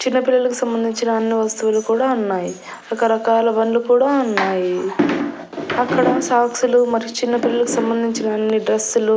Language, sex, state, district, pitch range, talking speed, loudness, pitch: Telugu, female, Andhra Pradesh, Annamaya, 220-245 Hz, 125 wpm, -18 LUFS, 230 Hz